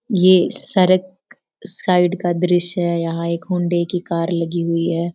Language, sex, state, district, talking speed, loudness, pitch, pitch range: Hindi, female, Bihar, Sitamarhi, 175 wpm, -17 LUFS, 175 Hz, 170-185 Hz